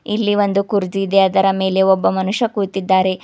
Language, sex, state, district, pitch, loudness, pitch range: Kannada, female, Karnataka, Bidar, 195 Hz, -16 LUFS, 190-205 Hz